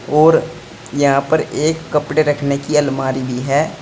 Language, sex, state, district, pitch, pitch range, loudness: Hindi, male, Uttar Pradesh, Saharanpur, 145 Hz, 140-155 Hz, -16 LUFS